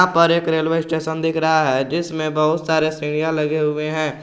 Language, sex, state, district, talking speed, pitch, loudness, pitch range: Hindi, male, Jharkhand, Garhwa, 200 wpm, 160 Hz, -19 LUFS, 155-160 Hz